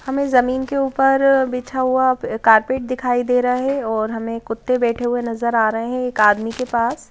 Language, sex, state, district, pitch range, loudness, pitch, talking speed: Hindi, female, Madhya Pradesh, Bhopal, 230-260 Hz, -18 LUFS, 250 Hz, 210 wpm